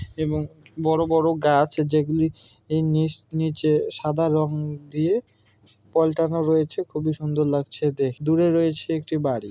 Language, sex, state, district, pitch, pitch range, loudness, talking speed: Bengali, male, West Bengal, Malda, 155 Hz, 145-160 Hz, -23 LUFS, 130 wpm